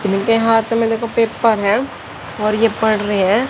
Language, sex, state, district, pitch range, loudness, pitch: Hindi, female, Haryana, Jhajjar, 210-230 Hz, -16 LUFS, 225 Hz